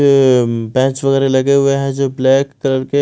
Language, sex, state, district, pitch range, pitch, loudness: Hindi, male, Odisha, Malkangiri, 130-140 Hz, 135 Hz, -14 LUFS